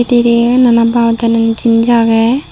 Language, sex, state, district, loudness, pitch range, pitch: Chakma, female, Tripura, Dhalai, -10 LUFS, 230-240 Hz, 235 Hz